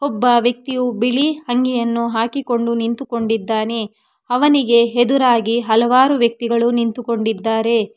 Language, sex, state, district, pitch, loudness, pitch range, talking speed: Kannada, female, Karnataka, Bangalore, 235 Hz, -17 LUFS, 230-250 Hz, 85 wpm